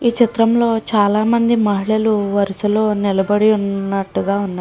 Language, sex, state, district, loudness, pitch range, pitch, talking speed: Telugu, female, Andhra Pradesh, Srikakulam, -16 LUFS, 200-225 Hz, 210 Hz, 105 wpm